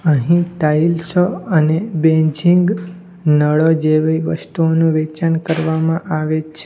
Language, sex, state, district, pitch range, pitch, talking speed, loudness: Gujarati, male, Gujarat, Valsad, 155-175 Hz, 160 Hz, 100 wpm, -16 LUFS